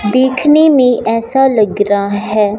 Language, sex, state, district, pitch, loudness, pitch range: Hindi, female, Punjab, Fazilka, 230 Hz, -11 LUFS, 205-260 Hz